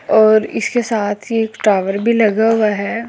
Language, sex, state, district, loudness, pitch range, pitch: Hindi, female, Delhi, New Delhi, -15 LUFS, 210-225 Hz, 220 Hz